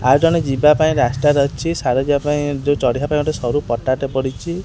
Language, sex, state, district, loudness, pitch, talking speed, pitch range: Odia, male, Odisha, Khordha, -17 LUFS, 145 Hz, 205 wpm, 130-150 Hz